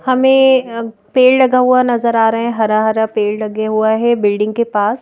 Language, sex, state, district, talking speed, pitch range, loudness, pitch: Hindi, female, Madhya Pradesh, Bhopal, 215 wpm, 215-255 Hz, -13 LUFS, 230 Hz